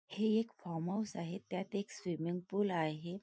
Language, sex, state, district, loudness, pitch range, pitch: Marathi, female, Maharashtra, Nagpur, -38 LUFS, 170-205 Hz, 185 Hz